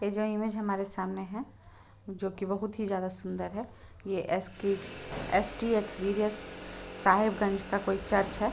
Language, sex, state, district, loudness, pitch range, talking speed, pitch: Hindi, female, Jharkhand, Sahebganj, -32 LUFS, 195-210 Hz, 170 wpm, 200 Hz